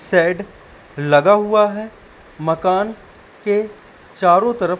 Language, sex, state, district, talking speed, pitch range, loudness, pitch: Hindi, male, Madhya Pradesh, Katni, 100 wpm, 175-210 Hz, -17 LUFS, 200 Hz